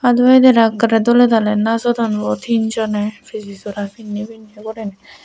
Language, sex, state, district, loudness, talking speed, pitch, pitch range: Chakma, female, Tripura, West Tripura, -15 LUFS, 160 wpm, 220 Hz, 210-230 Hz